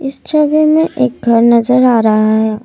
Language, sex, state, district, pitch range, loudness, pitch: Hindi, female, Assam, Kamrup Metropolitan, 225-300 Hz, -11 LUFS, 250 Hz